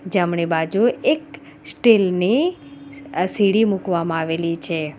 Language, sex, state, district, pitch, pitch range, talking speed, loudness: Gujarati, female, Gujarat, Valsad, 195 Hz, 170-245 Hz, 120 wpm, -19 LUFS